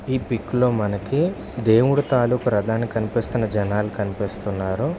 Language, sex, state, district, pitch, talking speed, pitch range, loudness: Telugu, male, Andhra Pradesh, Visakhapatnam, 115 Hz, 120 wpm, 105-125 Hz, -22 LUFS